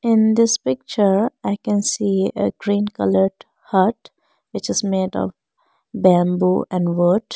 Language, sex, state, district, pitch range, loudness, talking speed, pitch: English, female, Arunachal Pradesh, Lower Dibang Valley, 180-210 Hz, -19 LUFS, 140 wpm, 195 Hz